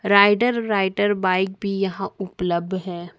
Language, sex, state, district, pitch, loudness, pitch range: Hindi, female, Jharkhand, Ranchi, 195 Hz, -21 LUFS, 185-205 Hz